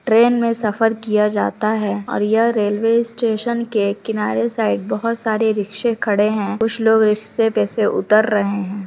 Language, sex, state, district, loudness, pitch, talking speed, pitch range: Hindi, female, Chhattisgarh, Sukma, -18 LUFS, 215 Hz, 175 wpm, 205-225 Hz